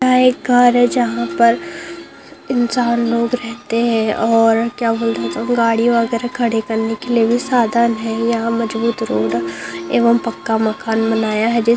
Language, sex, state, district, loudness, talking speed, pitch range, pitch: Hindi, female, Bihar, Saharsa, -16 LUFS, 185 wpm, 225-240 Hz, 230 Hz